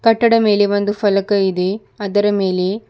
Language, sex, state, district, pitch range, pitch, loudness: Kannada, female, Karnataka, Bidar, 195-210 Hz, 205 Hz, -16 LUFS